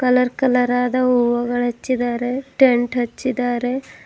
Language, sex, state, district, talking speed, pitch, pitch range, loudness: Kannada, female, Karnataka, Bidar, 90 wpm, 245 Hz, 245-255 Hz, -19 LUFS